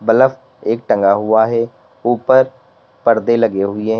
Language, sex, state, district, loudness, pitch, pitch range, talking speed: Hindi, male, Uttar Pradesh, Lalitpur, -15 LUFS, 115 Hz, 110-125 Hz, 150 wpm